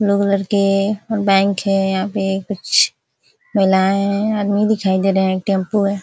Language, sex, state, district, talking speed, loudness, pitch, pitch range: Hindi, female, Uttar Pradesh, Ghazipur, 140 wpm, -17 LUFS, 200 Hz, 195-205 Hz